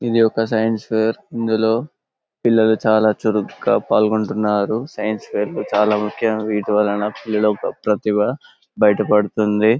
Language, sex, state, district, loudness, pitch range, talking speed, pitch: Telugu, male, Telangana, Karimnagar, -18 LUFS, 105-115 Hz, 110 wpm, 110 Hz